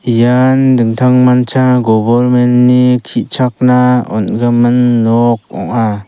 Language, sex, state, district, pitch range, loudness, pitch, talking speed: Garo, male, Meghalaya, South Garo Hills, 120-125 Hz, -10 LUFS, 125 Hz, 80 wpm